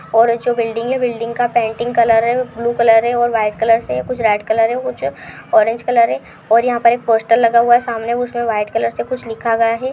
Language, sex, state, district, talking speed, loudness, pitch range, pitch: Hindi, female, Uttar Pradesh, Jyotiba Phule Nagar, 255 wpm, -15 LUFS, 225-240 Hz, 230 Hz